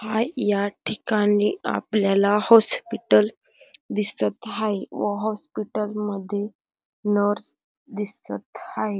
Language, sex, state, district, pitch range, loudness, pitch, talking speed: Marathi, female, Maharashtra, Dhule, 205-215 Hz, -23 LUFS, 210 Hz, 80 wpm